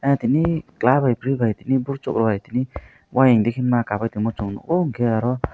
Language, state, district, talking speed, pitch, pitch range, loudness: Kokborok, Tripura, West Tripura, 185 wpm, 125 Hz, 115-135 Hz, -21 LUFS